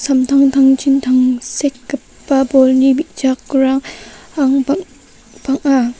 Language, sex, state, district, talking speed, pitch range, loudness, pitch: Garo, female, Meghalaya, North Garo Hills, 60 wpm, 265-275 Hz, -14 LUFS, 270 Hz